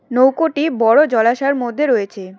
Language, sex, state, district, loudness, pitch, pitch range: Bengali, female, West Bengal, Cooch Behar, -15 LUFS, 255 Hz, 225-295 Hz